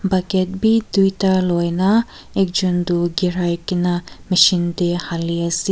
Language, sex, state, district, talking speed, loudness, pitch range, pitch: Nagamese, female, Nagaland, Kohima, 115 wpm, -18 LUFS, 175-190 Hz, 180 Hz